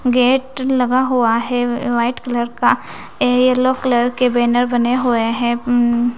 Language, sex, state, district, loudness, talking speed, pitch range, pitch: Hindi, female, Bihar, West Champaran, -16 LUFS, 135 wpm, 240-255 Hz, 245 Hz